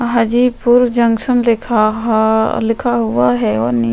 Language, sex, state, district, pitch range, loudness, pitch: Hindi, female, Chhattisgarh, Sukma, 215-240 Hz, -14 LUFS, 230 Hz